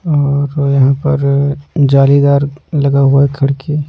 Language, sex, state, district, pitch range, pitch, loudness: Hindi, male, Punjab, Pathankot, 140-145 Hz, 140 Hz, -12 LUFS